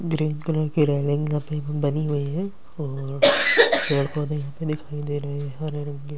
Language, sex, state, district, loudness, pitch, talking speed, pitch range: Hindi, male, Delhi, New Delhi, -22 LUFS, 150 Hz, 175 wpm, 145-155 Hz